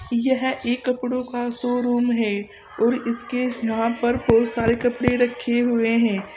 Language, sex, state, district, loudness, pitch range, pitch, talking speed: Hindi, female, Uttar Pradesh, Saharanpur, -22 LUFS, 230-245 Hz, 240 Hz, 150 wpm